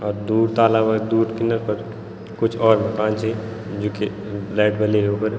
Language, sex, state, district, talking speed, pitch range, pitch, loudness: Garhwali, male, Uttarakhand, Tehri Garhwal, 180 wpm, 105-110 Hz, 110 Hz, -20 LUFS